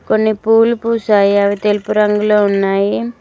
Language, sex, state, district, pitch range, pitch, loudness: Telugu, female, Telangana, Mahabubabad, 200-225 Hz, 210 Hz, -13 LUFS